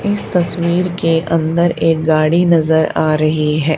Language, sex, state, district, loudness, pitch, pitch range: Hindi, male, Haryana, Charkhi Dadri, -14 LUFS, 165 Hz, 155-170 Hz